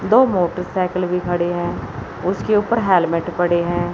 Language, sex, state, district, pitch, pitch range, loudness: Hindi, male, Chandigarh, Chandigarh, 180 Hz, 175-190 Hz, -19 LUFS